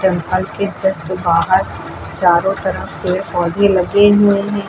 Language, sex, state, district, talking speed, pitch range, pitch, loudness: Hindi, female, Uttar Pradesh, Lucknow, 140 wpm, 175-200 Hz, 190 Hz, -15 LUFS